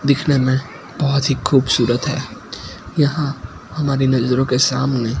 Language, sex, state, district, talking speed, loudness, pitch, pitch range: Hindi, male, Gujarat, Gandhinagar, 125 wpm, -18 LUFS, 135 Hz, 130-140 Hz